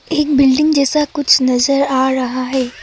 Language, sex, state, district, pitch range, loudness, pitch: Hindi, female, Assam, Kamrup Metropolitan, 260-295 Hz, -14 LUFS, 275 Hz